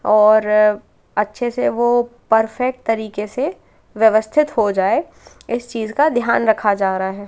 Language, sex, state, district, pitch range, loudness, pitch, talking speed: Hindi, female, Madhya Pradesh, Katni, 210-240 Hz, -17 LUFS, 220 Hz, 150 wpm